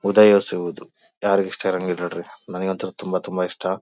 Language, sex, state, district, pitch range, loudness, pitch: Kannada, male, Karnataka, Bellary, 90-100 Hz, -21 LUFS, 95 Hz